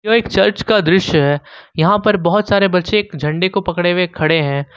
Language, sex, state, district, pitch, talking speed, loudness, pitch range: Hindi, male, Jharkhand, Ranchi, 180 Hz, 225 wpm, -15 LUFS, 155-205 Hz